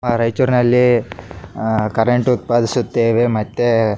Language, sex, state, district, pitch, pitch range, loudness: Kannada, male, Karnataka, Raichur, 115 Hz, 110-120 Hz, -16 LUFS